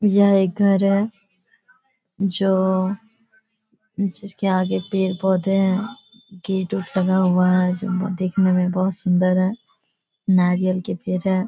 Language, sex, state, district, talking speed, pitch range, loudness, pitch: Hindi, female, Bihar, Kishanganj, 130 wpm, 185-200 Hz, -20 LUFS, 190 Hz